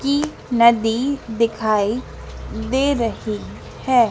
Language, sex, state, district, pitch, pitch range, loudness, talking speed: Hindi, female, Madhya Pradesh, Dhar, 235 Hz, 220-265 Hz, -20 LUFS, 85 wpm